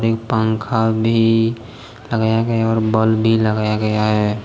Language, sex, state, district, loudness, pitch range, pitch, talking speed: Hindi, male, Jharkhand, Deoghar, -17 LUFS, 110-115 Hz, 110 Hz, 150 wpm